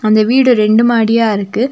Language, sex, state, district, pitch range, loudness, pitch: Tamil, female, Tamil Nadu, Nilgiris, 215-240 Hz, -11 LUFS, 225 Hz